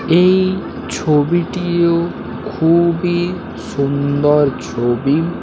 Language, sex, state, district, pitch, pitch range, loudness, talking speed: Bengali, male, West Bengal, Paschim Medinipur, 170 Hz, 145-175 Hz, -16 LUFS, 55 wpm